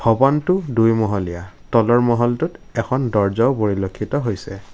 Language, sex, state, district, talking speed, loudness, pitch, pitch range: Assamese, male, Assam, Kamrup Metropolitan, 100 wpm, -19 LUFS, 115 Hz, 100-130 Hz